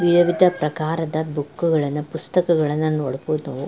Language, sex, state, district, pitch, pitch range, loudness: Kannada, female, Karnataka, Chamarajanagar, 155 Hz, 150-170 Hz, -21 LUFS